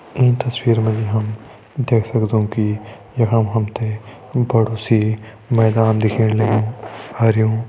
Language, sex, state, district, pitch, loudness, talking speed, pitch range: Hindi, male, Uttarakhand, Tehri Garhwal, 110 Hz, -18 LUFS, 130 wpm, 110-115 Hz